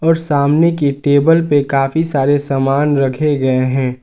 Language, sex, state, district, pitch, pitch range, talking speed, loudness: Hindi, male, Jharkhand, Garhwa, 145 Hz, 135-150 Hz, 150 wpm, -14 LUFS